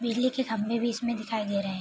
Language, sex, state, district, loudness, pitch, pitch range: Hindi, female, Bihar, Araria, -29 LUFS, 230 Hz, 215-235 Hz